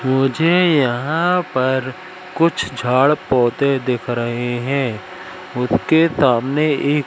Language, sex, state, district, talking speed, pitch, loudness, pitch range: Hindi, male, Madhya Pradesh, Katni, 100 wpm, 135 Hz, -17 LUFS, 125-165 Hz